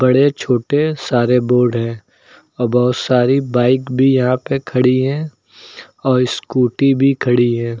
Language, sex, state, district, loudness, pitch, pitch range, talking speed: Hindi, male, Uttar Pradesh, Lucknow, -15 LUFS, 125 Hz, 125-135 Hz, 145 wpm